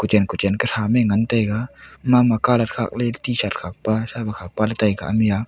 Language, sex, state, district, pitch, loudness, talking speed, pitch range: Wancho, female, Arunachal Pradesh, Longding, 110 Hz, -20 LUFS, 230 wpm, 105-120 Hz